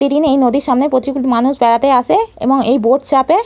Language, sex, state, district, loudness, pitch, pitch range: Bengali, female, West Bengal, Malda, -13 LUFS, 270 Hz, 255-280 Hz